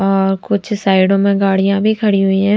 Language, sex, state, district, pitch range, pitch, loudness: Hindi, female, Punjab, Fazilka, 195-205 Hz, 195 Hz, -14 LUFS